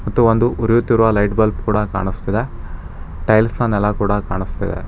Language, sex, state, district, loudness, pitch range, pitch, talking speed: Kannada, male, Karnataka, Bangalore, -17 LUFS, 95-115 Hz, 105 Hz, 145 wpm